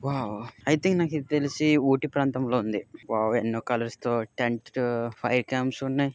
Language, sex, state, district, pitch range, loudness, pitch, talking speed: Telugu, male, Andhra Pradesh, Visakhapatnam, 115-140 Hz, -27 LUFS, 125 Hz, 135 wpm